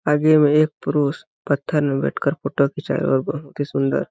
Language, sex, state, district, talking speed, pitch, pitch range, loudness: Hindi, male, Chhattisgarh, Balrampur, 220 wpm, 145 Hz, 140-150 Hz, -20 LUFS